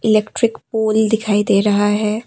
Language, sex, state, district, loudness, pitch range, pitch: Hindi, female, Assam, Kamrup Metropolitan, -16 LUFS, 205-220 Hz, 215 Hz